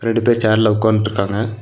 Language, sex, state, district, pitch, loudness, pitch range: Tamil, male, Tamil Nadu, Nilgiris, 110 Hz, -16 LUFS, 105-115 Hz